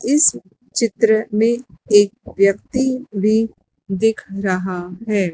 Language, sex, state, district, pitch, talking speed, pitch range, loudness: Hindi, female, Madhya Pradesh, Dhar, 215 Hz, 100 wpm, 195-230 Hz, -18 LUFS